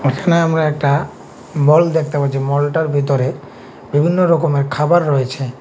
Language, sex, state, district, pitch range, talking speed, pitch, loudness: Bengali, male, Tripura, West Tripura, 140-160 Hz, 130 wpm, 145 Hz, -15 LUFS